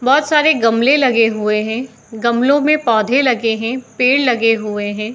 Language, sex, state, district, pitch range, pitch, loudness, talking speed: Hindi, female, Uttar Pradesh, Muzaffarnagar, 225-265 Hz, 235 Hz, -14 LUFS, 175 wpm